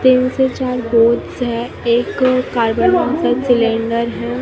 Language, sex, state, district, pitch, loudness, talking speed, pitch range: Hindi, female, Maharashtra, Mumbai Suburban, 240 Hz, -16 LUFS, 135 wpm, 235-255 Hz